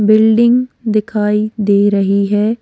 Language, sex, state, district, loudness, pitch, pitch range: Hindi, female, Goa, North and South Goa, -13 LUFS, 215 Hz, 205-220 Hz